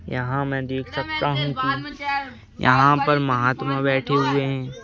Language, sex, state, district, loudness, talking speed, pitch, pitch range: Hindi, male, Madhya Pradesh, Bhopal, -22 LUFS, 150 wpm, 135 Hz, 130-145 Hz